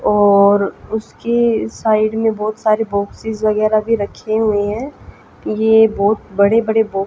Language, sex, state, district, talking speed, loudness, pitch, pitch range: Hindi, female, Haryana, Jhajjar, 160 wpm, -16 LUFS, 215 Hz, 205-220 Hz